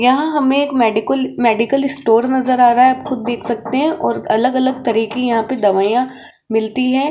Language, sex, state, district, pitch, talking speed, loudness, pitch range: Hindi, female, Rajasthan, Jaipur, 250 Hz, 220 wpm, -15 LUFS, 230-265 Hz